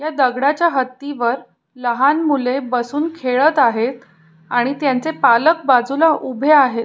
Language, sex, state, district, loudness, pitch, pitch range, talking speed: Marathi, female, Maharashtra, Pune, -16 LUFS, 265 Hz, 245-295 Hz, 130 wpm